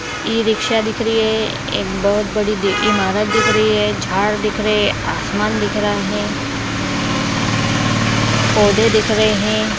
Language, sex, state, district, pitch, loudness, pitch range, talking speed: Hindi, female, Bihar, Saharsa, 210 Hz, -16 LUFS, 130-215 Hz, 135 wpm